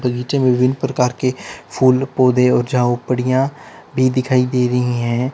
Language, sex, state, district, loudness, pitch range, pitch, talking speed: Hindi, male, Uttar Pradesh, Lalitpur, -17 LUFS, 125-130 Hz, 125 Hz, 145 wpm